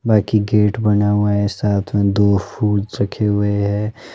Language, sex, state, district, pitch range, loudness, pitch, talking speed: Hindi, male, Himachal Pradesh, Shimla, 100-105 Hz, -17 LUFS, 105 Hz, 175 wpm